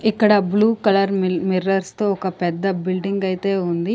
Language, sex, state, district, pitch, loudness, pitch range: Telugu, female, Andhra Pradesh, Sri Satya Sai, 195 Hz, -19 LUFS, 185-205 Hz